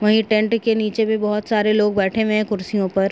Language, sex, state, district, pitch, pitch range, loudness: Hindi, female, Uttar Pradesh, Gorakhpur, 215 Hz, 210-220 Hz, -19 LUFS